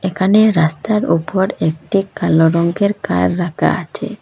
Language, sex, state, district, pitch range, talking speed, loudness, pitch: Bengali, female, Assam, Hailakandi, 160-205 Hz, 130 wpm, -15 LUFS, 185 Hz